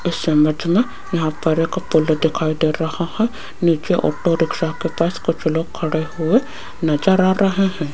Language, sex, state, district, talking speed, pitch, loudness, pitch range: Hindi, female, Rajasthan, Jaipur, 180 wpm, 165 Hz, -19 LUFS, 160-185 Hz